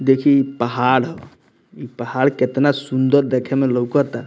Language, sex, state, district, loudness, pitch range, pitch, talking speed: Bhojpuri, male, Bihar, Muzaffarpur, -18 LUFS, 125-140 Hz, 130 Hz, 155 wpm